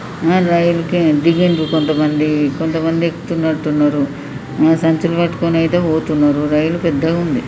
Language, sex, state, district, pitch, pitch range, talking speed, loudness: Telugu, male, Telangana, Nalgonda, 160 Hz, 150-170 Hz, 110 wpm, -15 LUFS